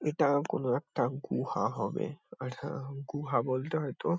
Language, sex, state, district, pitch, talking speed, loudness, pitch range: Bengali, male, West Bengal, Kolkata, 140 Hz, 155 wpm, -33 LUFS, 130-145 Hz